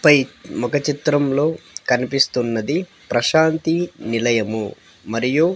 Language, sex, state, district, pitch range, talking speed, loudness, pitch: Telugu, female, Andhra Pradesh, Sri Satya Sai, 120-160 Hz, 75 wpm, -20 LUFS, 140 Hz